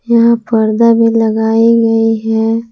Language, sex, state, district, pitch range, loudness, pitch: Hindi, female, Jharkhand, Palamu, 225-230 Hz, -11 LUFS, 225 Hz